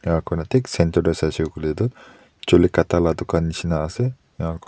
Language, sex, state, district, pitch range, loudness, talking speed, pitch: Nagamese, male, Nagaland, Dimapur, 80-90 Hz, -21 LUFS, 180 wpm, 85 Hz